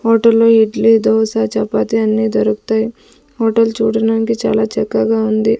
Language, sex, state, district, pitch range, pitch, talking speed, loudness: Telugu, female, Andhra Pradesh, Sri Satya Sai, 220-225 Hz, 225 Hz, 120 wpm, -14 LUFS